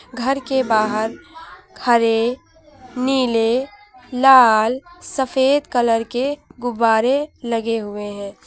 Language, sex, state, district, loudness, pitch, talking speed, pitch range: Hindi, female, Uttar Pradesh, Lucknow, -18 LUFS, 250 Hz, 90 wpm, 230-270 Hz